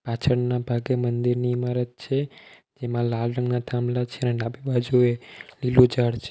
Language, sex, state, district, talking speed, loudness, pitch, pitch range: Gujarati, male, Gujarat, Valsad, 150 wpm, -24 LUFS, 125 Hz, 120-125 Hz